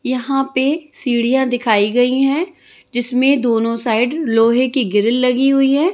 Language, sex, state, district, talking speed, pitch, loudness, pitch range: Hindi, female, Chandigarh, Chandigarh, 150 wpm, 255 Hz, -16 LUFS, 235-270 Hz